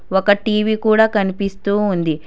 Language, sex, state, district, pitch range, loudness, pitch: Telugu, female, Telangana, Hyderabad, 190-215 Hz, -17 LUFS, 205 Hz